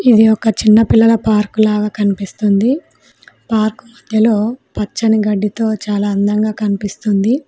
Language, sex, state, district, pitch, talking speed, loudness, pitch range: Telugu, female, Telangana, Mahabubabad, 215 Hz, 110 wpm, -14 LUFS, 210-225 Hz